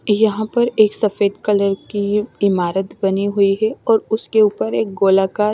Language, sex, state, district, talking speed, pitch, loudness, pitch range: Hindi, female, Himachal Pradesh, Shimla, 175 wpm, 205 Hz, -17 LUFS, 195-215 Hz